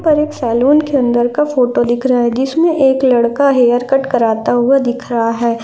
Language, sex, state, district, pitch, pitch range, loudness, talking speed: Hindi, female, Bihar, Lakhisarai, 250 Hz, 240-275 Hz, -13 LUFS, 190 wpm